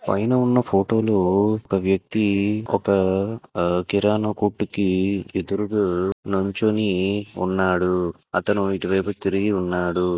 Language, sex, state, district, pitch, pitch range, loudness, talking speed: Telugu, male, Andhra Pradesh, Visakhapatnam, 100 Hz, 95-105 Hz, -22 LUFS, 75 wpm